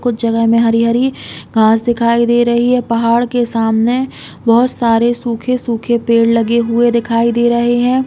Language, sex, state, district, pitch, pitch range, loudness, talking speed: Hindi, female, Uttar Pradesh, Hamirpur, 235 Hz, 230-240 Hz, -13 LUFS, 165 wpm